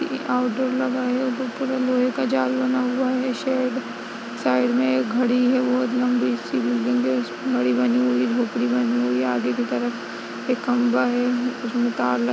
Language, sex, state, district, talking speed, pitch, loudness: Hindi, female, Uttar Pradesh, Jyotiba Phule Nagar, 180 wpm, 240 Hz, -22 LUFS